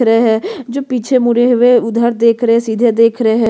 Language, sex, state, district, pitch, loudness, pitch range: Hindi, female, Chhattisgarh, Korba, 235 Hz, -12 LUFS, 230-245 Hz